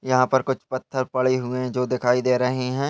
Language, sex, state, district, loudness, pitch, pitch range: Hindi, male, Goa, North and South Goa, -23 LUFS, 130 Hz, 125-130 Hz